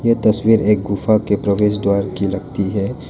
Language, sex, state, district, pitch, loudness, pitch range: Hindi, male, Arunachal Pradesh, Lower Dibang Valley, 105 Hz, -17 LUFS, 100-110 Hz